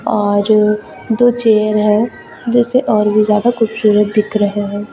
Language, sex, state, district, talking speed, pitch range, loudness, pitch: Hindi, female, Chhattisgarh, Raipur, 145 wpm, 210-225 Hz, -14 LUFS, 215 Hz